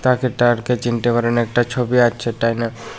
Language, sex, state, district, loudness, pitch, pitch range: Bengali, male, Tripura, West Tripura, -18 LUFS, 120 Hz, 115-125 Hz